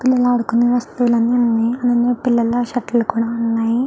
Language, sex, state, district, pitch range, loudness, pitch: Telugu, female, Andhra Pradesh, Chittoor, 230-245 Hz, -17 LUFS, 240 Hz